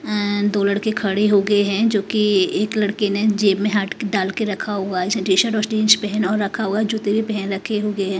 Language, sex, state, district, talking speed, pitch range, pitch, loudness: Hindi, female, Himachal Pradesh, Shimla, 240 wpm, 200-215 Hz, 205 Hz, -19 LUFS